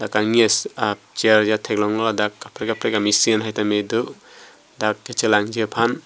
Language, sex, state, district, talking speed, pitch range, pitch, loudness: Karbi, male, Assam, Karbi Anglong, 160 wpm, 105-110 Hz, 110 Hz, -20 LUFS